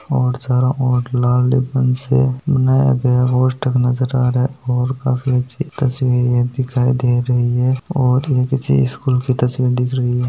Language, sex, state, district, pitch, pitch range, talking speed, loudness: Hindi, male, Rajasthan, Nagaur, 125 Hz, 125-130 Hz, 180 wpm, -17 LUFS